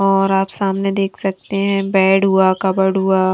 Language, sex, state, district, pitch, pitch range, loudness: Hindi, female, Punjab, Kapurthala, 195 Hz, 190-195 Hz, -16 LUFS